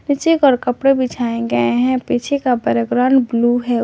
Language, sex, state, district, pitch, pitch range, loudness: Hindi, female, Jharkhand, Garhwa, 245 Hz, 235-265 Hz, -16 LUFS